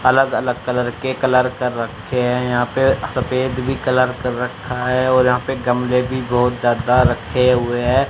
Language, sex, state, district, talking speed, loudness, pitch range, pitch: Hindi, male, Haryana, Charkhi Dadri, 195 wpm, -18 LUFS, 125-130 Hz, 125 Hz